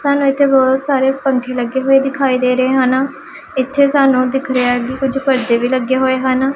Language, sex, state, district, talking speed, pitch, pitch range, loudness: Punjabi, female, Punjab, Pathankot, 200 wpm, 265 Hz, 255-275 Hz, -14 LUFS